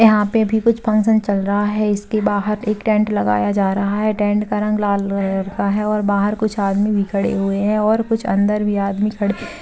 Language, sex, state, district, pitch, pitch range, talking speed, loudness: Hindi, female, Chhattisgarh, Kabirdham, 210 Hz, 200-215 Hz, 230 wpm, -18 LUFS